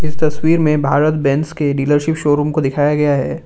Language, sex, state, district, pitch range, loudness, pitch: Hindi, male, Assam, Kamrup Metropolitan, 145-155 Hz, -15 LUFS, 150 Hz